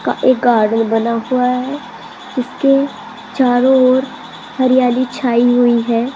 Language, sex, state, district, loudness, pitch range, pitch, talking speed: Hindi, female, Rajasthan, Jaipur, -14 LUFS, 235-260 Hz, 250 Hz, 125 wpm